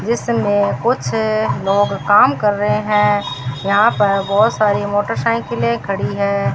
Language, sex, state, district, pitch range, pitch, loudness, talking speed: Hindi, female, Rajasthan, Bikaner, 195-210 Hz, 205 Hz, -16 LUFS, 130 wpm